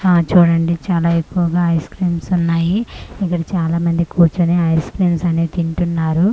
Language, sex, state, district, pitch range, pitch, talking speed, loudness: Telugu, female, Andhra Pradesh, Manyam, 165-180 Hz, 170 Hz, 150 wpm, -16 LUFS